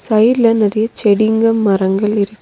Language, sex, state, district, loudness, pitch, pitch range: Tamil, female, Tamil Nadu, Nilgiris, -13 LUFS, 215 Hz, 205-225 Hz